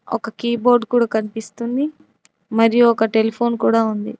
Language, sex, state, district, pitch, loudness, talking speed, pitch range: Telugu, female, Telangana, Mahabubabad, 230 Hz, -18 LUFS, 145 wpm, 225-235 Hz